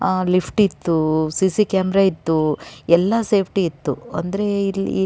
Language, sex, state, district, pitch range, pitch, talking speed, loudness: Kannada, female, Karnataka, Raichur, 160-195 Hz, 185 Hz, 140 wpm, -19 LUFS